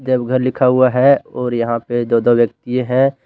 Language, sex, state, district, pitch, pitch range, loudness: Hindi, male, Jharkhand, Deoghar, 125 Hz, 120-130 Hz, -15 LUFS